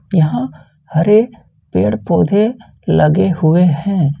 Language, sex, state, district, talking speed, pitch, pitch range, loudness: Hindi, male, Jharkhand, Ranchi, 100 wpm, 170 Hz, 150-200 Hz, -14 LUFS